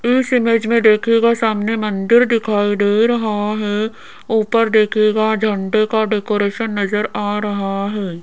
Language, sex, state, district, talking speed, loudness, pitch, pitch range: Hindi, female, Rajasthan, Jaipur, 140 wpm, -16 LUFS, 215 Hz, 205-230 Hz